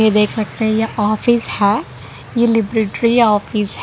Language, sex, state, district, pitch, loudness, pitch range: Hindi, female, Gujarat, Valsad, 220 Hz, -16 LUFS, 210-230 Hz